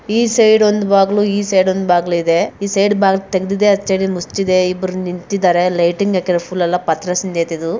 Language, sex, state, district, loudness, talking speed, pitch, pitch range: Kannada, female, Karnataka, Bijapur, -15 LUFS, 170 wpm, 190 Hz, 180-200 Hz